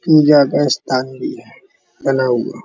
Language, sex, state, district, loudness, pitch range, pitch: Hindi, male, Uttar Pradesh, Muzaffarnagar, -15 LUFS, 130-150 Hz, 135 Hz